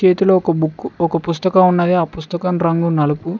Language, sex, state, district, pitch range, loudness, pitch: Telugu, male, Telangana, Mahabubabad, 165-180 Hz, -16 LUFS, 175 Hz